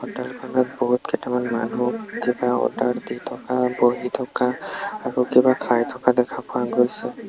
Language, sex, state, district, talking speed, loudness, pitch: Assamese, male, Assam, Sonitpur, 140 wpm, -22 LUFS, 125 Hz